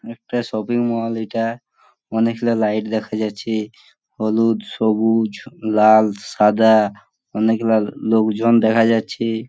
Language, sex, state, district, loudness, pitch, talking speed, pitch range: Bengali, male, West Bengal, Purulia, -18 LUFS, 110 Hz, 105 wpm, 110-115 Hz